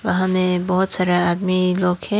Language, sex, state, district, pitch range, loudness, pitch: Hindi, female, Tripura, Dhalai, 180-185 Hz, -17 LUFS, 185 Hz